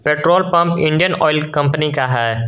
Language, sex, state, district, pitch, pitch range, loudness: Hindi, male, Jharkhand, Garhwa, 150 Hz, 145-170 Hz, -15 LUFS